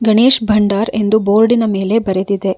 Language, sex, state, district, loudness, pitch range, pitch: Kannada, female, Karnataka, Bangalore, -13 LUFS, 200-225 Hz, 215 Hz